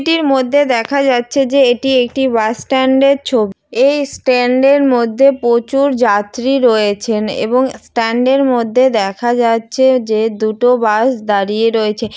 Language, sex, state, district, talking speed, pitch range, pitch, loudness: Bengali, female, West Bengal, Jalpaiguri, 145 wpm, 225-270 Hz, 245 Hz, -13 LUFS